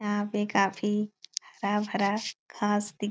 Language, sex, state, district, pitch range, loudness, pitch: Hindi, female, Bihar, Supaul, 205-210 Hz, -29 LUFS, 205 Hz